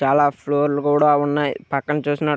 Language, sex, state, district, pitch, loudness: Telugu, male, Andhra Pradesh, Krishna, 145 Hz, -19 LUFS